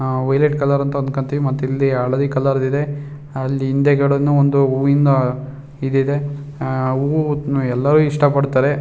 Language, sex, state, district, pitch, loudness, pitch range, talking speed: Kannada, male, Karnataka, Shimoga, 140 Hz, -17 LUFS, 135-145 Hz, 125 wpm